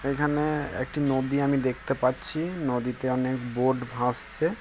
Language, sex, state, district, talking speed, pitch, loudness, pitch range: Bengali, male, West Bengal, Kolkata, 130 wpm, 130 Hz, -27 LUFS, 125-150 Hz